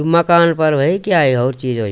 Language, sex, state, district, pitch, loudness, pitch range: Garhwali, male, Uttarakhand, Tehri Garhwal, 155 Hz, -14 LUFS, 130-170 Hz